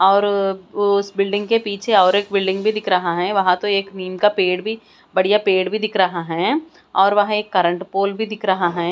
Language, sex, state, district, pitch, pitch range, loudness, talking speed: Hindi, female, Bihar, West Champaran, 195 Hz, 185-205 Hz, -18 LUFS, 230 wpm